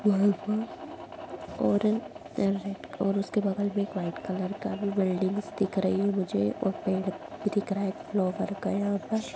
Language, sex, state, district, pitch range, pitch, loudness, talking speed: Hindi, female, Bihar, Muzaffarpur, 195-210 Hz, 200 Hz, -29 LUFS, 180 wpm